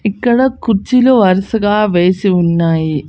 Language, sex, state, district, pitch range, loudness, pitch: Telugu, female, Andhra Pradesh, Annamaya, 175-225 Hz, -12 LUFS, 200 Hz